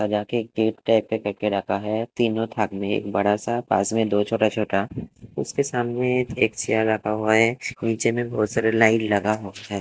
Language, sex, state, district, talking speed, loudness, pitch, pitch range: Hindi, male, Chhattisgarh, Raipur, 200 wpm, -23 LUFS, 110 Hz, 105-115 Hz